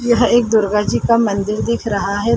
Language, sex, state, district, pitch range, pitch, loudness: Hindi, female, Uttar Pradesh, Jalaun, 205-235 Hz, 225 Hz, -16 LUFS